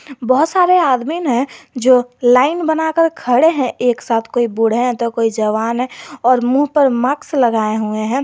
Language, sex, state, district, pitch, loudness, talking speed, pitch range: Hindi, male, Jharkhand, Garhwa, 250 Hz, -15 LUFS, 180 wpm, 235-290 Hz